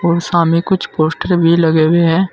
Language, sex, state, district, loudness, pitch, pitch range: Hindi, male, Uttar Pradesh, Saharanpur, -13 LUFS, 170 Hz, 165-175 Hz